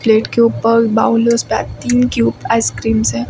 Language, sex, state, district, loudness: Hindi, female, Uttar Pradesh, Lucknow, -14 LUFS